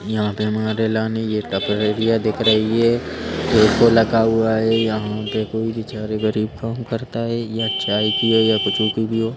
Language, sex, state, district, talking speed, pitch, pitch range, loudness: Hindi, male, Madhya Pradesh, Bhopal, 190 wpm, 110 Hz, 110-115 Hz, -19 LUFS